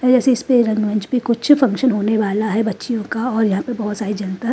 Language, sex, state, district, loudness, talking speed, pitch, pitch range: Hindi, female, Haryana, Rohtak, -18 LUFS, 240 wpm, 225 Hz, 210-250 Hz